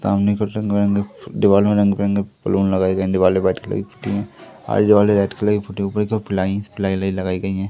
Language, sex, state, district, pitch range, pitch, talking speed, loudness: Hindi, male, Madhya Pradesh, Katni, 95-105 Hz, 100 Hz, 155 wpm, -19 LUFS